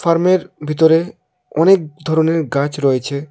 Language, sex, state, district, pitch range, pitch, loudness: Bengali, male, Tripura, West Tripura, 150-170 Hz, 160 Hz, -16 LUFS